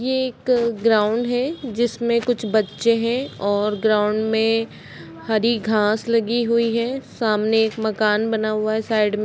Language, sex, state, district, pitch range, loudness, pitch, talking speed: Hindi, female, Uttar Pradesh, Budaun, 215-235 Hz, -20 LUFS, 225 Hz, 160 wpm